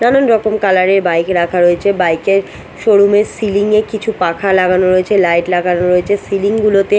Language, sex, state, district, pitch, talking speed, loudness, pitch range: Bengali, female, Bihar, Katihar, 195 Hz, 190 wpm, -12 LUFS, 180-210 Hz